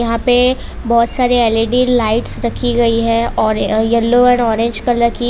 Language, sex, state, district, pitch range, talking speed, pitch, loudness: Hindi, female, Gujarat, Valsad, 230-245 Hz, 190 wpm, 235 Hz, -14 LUFS